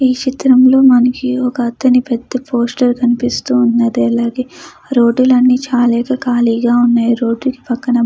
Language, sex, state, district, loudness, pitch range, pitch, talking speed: Telugu, female, Andhra Pradesh, Chittoor, -13 LUFS, 235-255 Hz, 245 Hz, 135 wpm